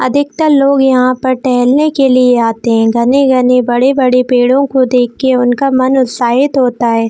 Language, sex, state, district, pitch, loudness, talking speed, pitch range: Hindi, female, Jharkhand, Jamtara, 255 Hz, -10 LUFS, 160 wpm, 245-270 Hz